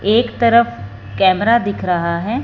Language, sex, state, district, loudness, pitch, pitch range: Hindi, female, Punjab, Fazilka, -15 LUFS, 205 Hz, 170-235 Hz